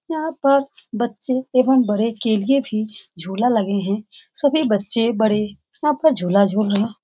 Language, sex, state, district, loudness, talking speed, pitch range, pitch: Hindi, female, Bihar, Saran, -19 LUFS, 160 wpm, 210-275 Hz, 230 Hz